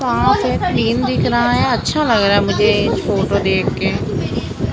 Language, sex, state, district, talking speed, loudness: Hindi, male, Maharashtra, Mumbai Suburban, 190 wpm, -16 LUFS